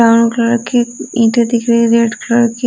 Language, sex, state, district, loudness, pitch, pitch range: Hindi, female, Delhi, New Delhi, -13 LUFS, 235 Hz, 230-235 Hz